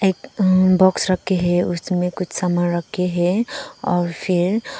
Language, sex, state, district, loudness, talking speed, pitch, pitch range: Hindi, female, Arunachal Pradesh, Papum Pare, -19 LUFS, 150 wpm, 185 Hz, 175-190 Hz